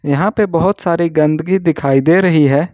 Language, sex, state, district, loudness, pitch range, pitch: Hindi, male, Jharkhand, Ranchi, -13 LUFS, 150-185 Hz, 165 Hz